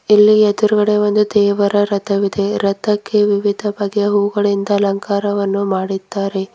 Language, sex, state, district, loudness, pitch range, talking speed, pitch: Kannada, female, Karnataka, Bidar, -15 LUFS, 200-210 Hz, 100 wpm, 205 Hz